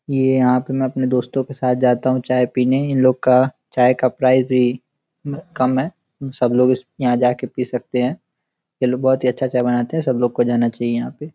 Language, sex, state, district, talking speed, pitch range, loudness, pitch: Hindi, male, Uttar Pradesh, Gorakhpur, 240 wpm, 125-130 Hz, -18 LUFS, 130 Hz